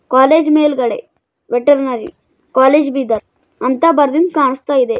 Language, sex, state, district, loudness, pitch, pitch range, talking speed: Kannada, male, Karnataka, Bidar, -13 LUFS, 290 Hz, 260-320 Hz, 95 wpm